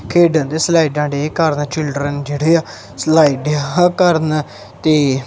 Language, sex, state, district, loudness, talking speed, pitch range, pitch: Punjabi, male, Punjab, Kapurthala, -15 LUFS, 160 wpm, 145-160 Hz, 150 Hz